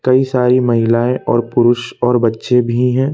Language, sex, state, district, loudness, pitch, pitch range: Hindi, male, Madhya Pradesh, Bhopal, -14 LUFS, 125 Hz, 120-125 Hz